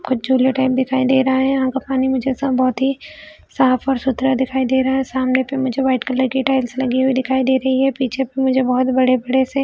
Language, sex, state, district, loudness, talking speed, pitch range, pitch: Hindi, female, Chhattisgarh, Bilaspur, -17 LUFS, 255 wpm, 260-265 Hz, 260 Hz